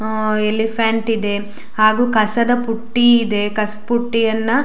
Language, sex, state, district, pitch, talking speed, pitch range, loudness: Kannada, female, Karnataka, Shimoga, 225 Hz, 130 wpm, 215-235 Hz, -16 LUFS